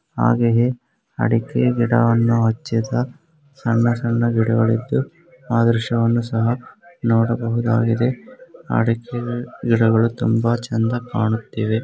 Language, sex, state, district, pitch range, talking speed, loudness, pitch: Kannada, male, Karnataka, Gulbarga, 115-120 Hz, 85 wpm, -19 LUFS, 115 Hz